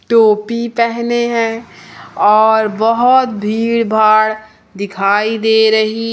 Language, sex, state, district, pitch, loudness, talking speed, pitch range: Hindi, female, Madhya Pradesh, Umaria, 220 Hz, -13 LUFS, 100 wpm, 215-230 Hz